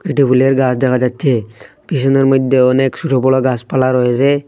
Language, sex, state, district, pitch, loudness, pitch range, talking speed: Bengali, male, Assam, Hailakandi, 130 Hz, -13 LUFS, 125-135 Hz, 160 wpm